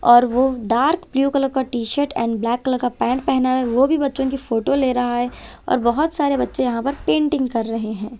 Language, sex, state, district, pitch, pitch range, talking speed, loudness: Hindi, female, Punjab, Kapurthala, 255 Hz, 240-275 Hz, 240 wpm, -19 LUFS